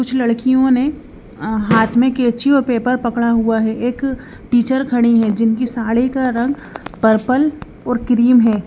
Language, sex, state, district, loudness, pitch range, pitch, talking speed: Hindi, female, Haryana, Rohtak, -16 LUFS, 230-260 Hz, 245 Hz, 160 wpm